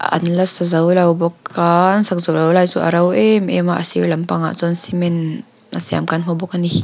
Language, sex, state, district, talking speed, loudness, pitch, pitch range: Mizo, female, Mizoram, Aizawl, 245 wpm, -16 LUFS, 170 Hz, 160-175 Hz